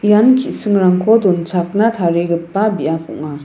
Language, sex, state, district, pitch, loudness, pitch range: Garo, female, Meghalaya, West Garo Hills, 185 Hz, -14 LUFS, 170-210 Hz